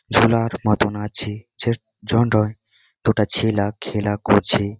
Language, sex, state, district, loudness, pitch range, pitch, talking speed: Bengali, male, West Bengal, Malda, -20 LUFS, 105-115 Hz, 110 Hz, 115 wpm